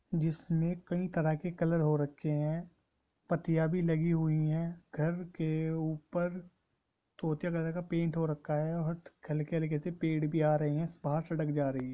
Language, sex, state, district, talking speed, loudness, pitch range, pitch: Hindi, male, Jharkhand, Sahebganj, 180 wpm, -33 LUFS, 155-170 Hz, 160 Hz